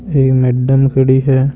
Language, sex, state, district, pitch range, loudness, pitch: Marwari, male, Rajasthan, Nagaur, 130-135 Hz, -12 LUFS, 135 Hz